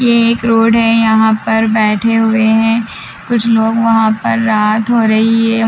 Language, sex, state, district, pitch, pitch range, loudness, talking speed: Hindi, female, Bihar, Patna, 225 Hz, 220-230 Hz, -11 LUFS, 180 wpm